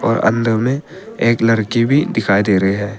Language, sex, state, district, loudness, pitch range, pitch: Hindi, male, Arunachal Pradesh, Papum Pare, -16 LUFS, 105-120 Hz, 115 Hz